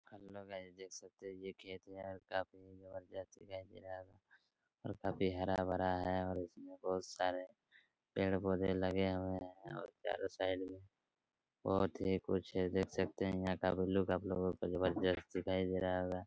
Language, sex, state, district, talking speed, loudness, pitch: Hindi, male, Chhattisgarh, Raigarh, 175 wpm, -40 LUFS, 95 Hz